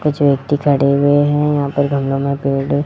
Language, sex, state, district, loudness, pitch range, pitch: Hindi, male, Rajasthan, Jaipur, -15 LUFS, 140-145 Hz, 140 Hz